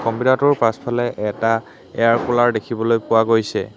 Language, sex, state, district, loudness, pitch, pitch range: Assamese, male, Assam, Hailakandi, -18 LUFS, 115 Hz, 115-120 Hz